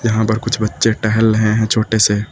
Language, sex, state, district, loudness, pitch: Hindi, male, Uttar Pradesh, Lucknow, -15 LUFS, 110 Hz